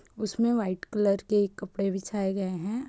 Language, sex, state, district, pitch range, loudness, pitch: Hindi, female, Chhattisgarh, Raigarh, 195-215 Hz, -29 LUFS, 200 Hz